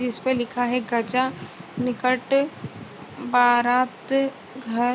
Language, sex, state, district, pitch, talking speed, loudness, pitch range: Hindi, female, Uttarakhand, Tehri Garhwal, 250 Hz, 85 wpm, -23 LUFS, 240-255 Hz